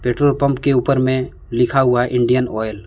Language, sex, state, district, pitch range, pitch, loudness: Hindi, male, Jharkhand, Deoghar, 120-135 Hz, 125 Hz, -17 LUFS